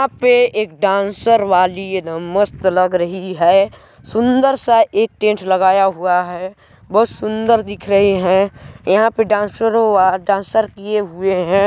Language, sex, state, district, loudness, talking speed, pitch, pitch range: Hindi, male, Chhattisgarh, Balrampur, -15 LUFS, 155 wpm, 200 Hz, 185-220 Hz